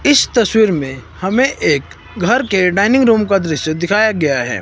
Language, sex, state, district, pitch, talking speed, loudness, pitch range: Hindi, male, Himachal Pradesh, Shimla, 200 Hz, 180 wpm, -14 LUFS, 160-235 Hz